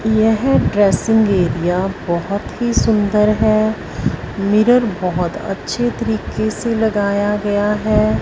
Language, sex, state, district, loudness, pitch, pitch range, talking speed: Hindi, female, Punjab, Fazilka, -16 LUFS, 210 Hz, 195-220 Hz, 110 wpm